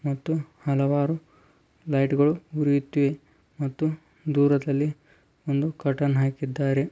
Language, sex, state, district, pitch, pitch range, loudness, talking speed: Kannada, male, Karnataka, Dharwad, 145 Hz, 140-155 Hz, -25 LUFS, 70 wpm